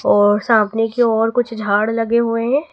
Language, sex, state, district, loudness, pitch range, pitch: Hindi, female, Madhya Pradesh, Dhar, -16 LUFS, 215-235 Hz, 225 Hz